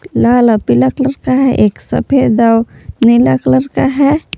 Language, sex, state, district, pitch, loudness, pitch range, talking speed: Hindi, female, Jharkhand, Palamu, 235 Hz, -11 LUFS, 210-270 Hz, 180 wpm